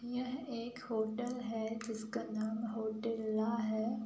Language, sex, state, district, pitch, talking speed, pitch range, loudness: Hindi, female, Uttar Pradesh, Budaun, 225 Hz, 135 wpm, 220-240 Hz, -39 LUFS